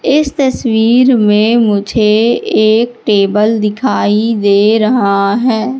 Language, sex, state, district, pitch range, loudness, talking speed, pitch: Hindi, female, Madhya Pradesh, Katni, 210-240 Hz, -11 LUFS, 105 wpm, 220 Hz